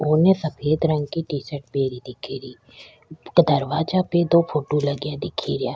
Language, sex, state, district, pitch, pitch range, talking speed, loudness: Rajasthani, female, Rajasthan, Churu, 150 Hz, 140-160 Hz, 135 wpm, -22 LUFS